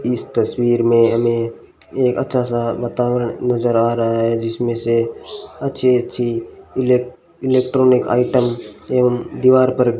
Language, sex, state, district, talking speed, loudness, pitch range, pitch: Hindi, male, Rajasthan, Bikaner, 130 wpm, -17 LUFS, 115-125 Hz, 120 Hz